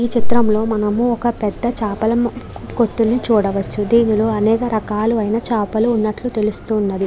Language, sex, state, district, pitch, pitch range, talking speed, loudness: Telugu, female, Andhra Pradesh, Krishna, 220 Hz, 215-235 Hz, 125 wpm, -17 LUFS